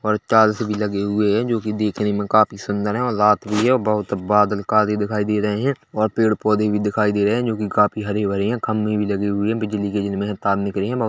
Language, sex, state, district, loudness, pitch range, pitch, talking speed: Hindi, male, Chhattisgarh, Bilaspur, -20 LUFS, 105-110 Hz, 105 Hz, 275 wpm